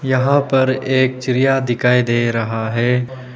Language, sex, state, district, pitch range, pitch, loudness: Hindi, male, Arunachal Pradesh, Papum Pare, 120-130 Hz, 130 Hz, -16 LUFS